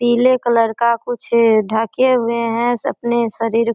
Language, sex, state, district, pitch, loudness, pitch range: Hindi, female, Bihar, Samastipur, 235 Hz, -16 LUFS, 230-240 Hz